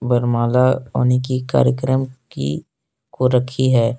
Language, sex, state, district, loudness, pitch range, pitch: Hindi, male, Jharkhand, Deoghar, -18 LUFS, 120-130 Hz, 125 Hz